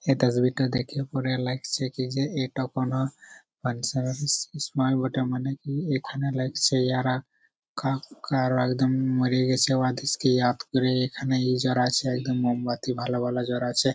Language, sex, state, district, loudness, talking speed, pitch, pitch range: Bengali, male, West Bengal, Purulia, -26 LUFS, 105 wpm, 130 Hz, 125-135 Hz